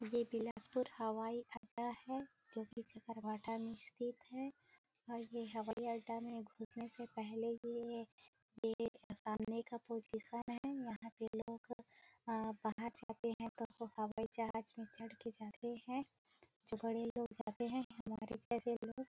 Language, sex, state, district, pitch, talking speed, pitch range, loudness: Hindi, female, Chhattisgarh, Bilaspur, 230 Hz, 140 wpm, 225-235 Hz, -46 LUFS